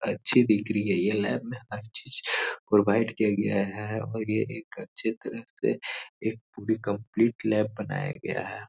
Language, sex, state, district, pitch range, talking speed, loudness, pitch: Hindi, male, Uttar Pradesh, Etah, 105-115 Hz, 180 wpm, -28 LUFS, 110 Hz